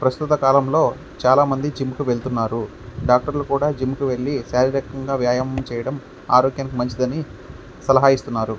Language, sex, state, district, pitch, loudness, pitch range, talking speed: Telugu, male, Andhra Pradesh, Krishna, 130 Hz, -20 LUFS, 125-140 Hz, 125 wpm